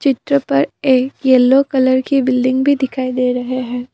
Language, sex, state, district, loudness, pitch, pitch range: Hindi, female, Assam, Kamrup Metropolitan, -15 LUFS, 260 Hz, 250-265 Hz